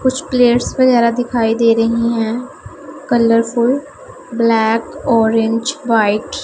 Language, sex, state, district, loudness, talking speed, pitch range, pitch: Hindi, female, Punjab, Pathankot, -15 LUFS, 110 wpm, 230-255 Hz, 235 Hz